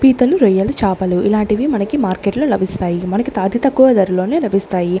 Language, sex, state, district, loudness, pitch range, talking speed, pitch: Telugu, female, Andhra Pradesh, Sri Satya Sai, -15 LUFS, 190-260 Hz, 155 wpm, 200 Hz